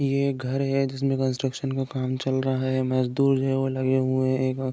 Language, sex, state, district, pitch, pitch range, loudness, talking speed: Hindi, male, Uttar Pradesh, Deoria, 130 Hz, 130-135 Hz, -25 LUFS, 255 wpm